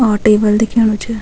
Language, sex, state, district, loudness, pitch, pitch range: Garhwali, female, Uttarakhand, Tehri Garhwal, -13 LUFS, 215 Hz, 210-225 Hz